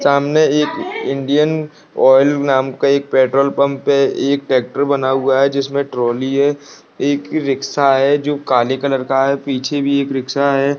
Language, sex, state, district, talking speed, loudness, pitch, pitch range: Hindi, male, Rajasthan, Nagaur, 165 wpm, -15 LUFS, 140 Hz, 135-140 Hz